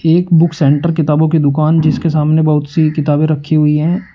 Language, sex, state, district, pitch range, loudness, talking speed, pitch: Hindi, male, Uttar Pradesh, Shamli, 150-165 Hz, -12 LUFS, 200 wpm, 155 Hz